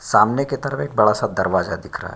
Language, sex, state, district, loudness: Hindi, male, Bihar, Bhagalpur, -19 LUFS